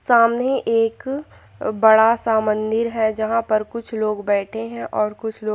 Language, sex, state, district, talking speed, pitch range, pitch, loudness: Hindi, female, Chhattisgarh, Sukma, 160 wpm, 215-230 Hz, 220 Hz, -20 LUFS